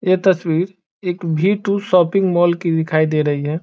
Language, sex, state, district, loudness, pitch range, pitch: Hindi, male, Bihar, Saran, -17 LUFS, 160-185 Hz, 175 Hz